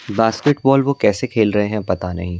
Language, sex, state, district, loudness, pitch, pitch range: Hindi, male, Delhi, New Delhi, -17 LUFS, 110 Hz, 100-130 Hz